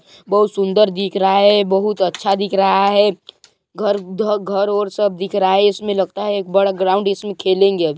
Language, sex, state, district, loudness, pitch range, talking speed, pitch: Hindi, male, Chhattisgarh, Balrampur, -16 LUFS, 195-205 Hz, 205 wpm, 195 Hz